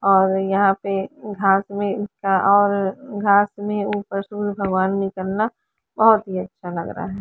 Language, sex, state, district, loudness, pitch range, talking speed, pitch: Hindi, female, Chandigarh, Chandigarh, -20 LUFS, 195-205 Hz, 85 wpm, 200 Hz